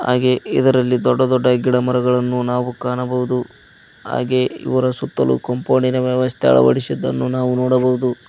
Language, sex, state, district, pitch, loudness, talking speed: Kannada, male, Karnataka, Koppal, 125 Hz, -17 LUFS, 115 wpm